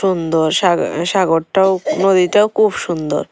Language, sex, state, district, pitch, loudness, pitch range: Bengali, female, Tripura, Unakoti, 180 Hz, -15 LUFS, 165-190 Hz